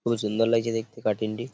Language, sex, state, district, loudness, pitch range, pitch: Bengali, male, West Bengal, Paschim Medinipur, -26 LUFS, 110-115 Hz, 115 Hz